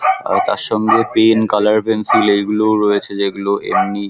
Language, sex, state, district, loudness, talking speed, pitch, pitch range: Bengali, male, West Bengal, Paschim Medinipur, -15 LUFS, 160 wpm, 105 Hz, 100-110 Hz